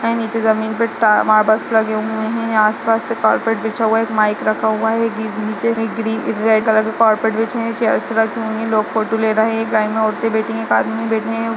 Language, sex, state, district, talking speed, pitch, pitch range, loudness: Hindi, female, Uttarakhand, Uttarkashi, 240 wpm, 220 Hz, 220-225 Hz, -17 LUFS